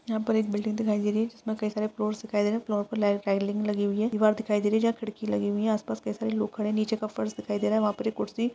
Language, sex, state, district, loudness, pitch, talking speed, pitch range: Hindi, female, Uttar Pradesh, Jalaun, -28 LUFS, 215 Hz, 345 wpm, 205-220 Hz